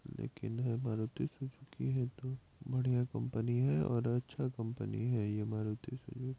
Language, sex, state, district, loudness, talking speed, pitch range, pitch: Hindi, male, Bihar, Madhepura, -38 LUFS, 140 wpm, 120-130 Hz, 125 Hz